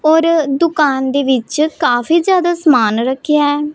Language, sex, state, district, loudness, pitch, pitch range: Hindi, male, Punjab, Pathankot, -13 LUFS, 300 Hz, 270-325 Hz